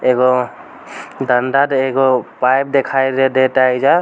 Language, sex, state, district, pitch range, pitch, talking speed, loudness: Bhojpuri, male, Bihar, East Champaran, 125-135 Hz, 130 Hz, 120 wpm, -15 LUFS